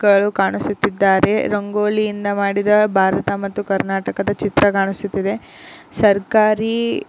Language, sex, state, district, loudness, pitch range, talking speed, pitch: Kannada, female, Karnataka, Koppal, -17 LUFS, 200-210 Hz, 95 wpm, 205 Hz